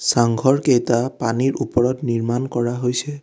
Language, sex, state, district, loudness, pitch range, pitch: Assamese, male, Assam, Kamrup Metropolitan, -19 LUFS, 120-130 Hz, 125 Hz